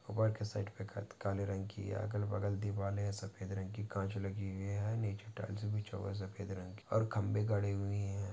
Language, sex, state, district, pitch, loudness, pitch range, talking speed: Hindi, male, Maharashtra, Pune, 100 Hz, -40 LUFS, 100-105 Hz, 215 wpm